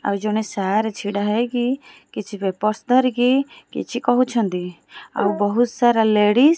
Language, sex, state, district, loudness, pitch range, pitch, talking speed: Odia, female, Odisha, Khordha, -20 LUFS, 205-245 Hz, 220 Hz, 135 wpm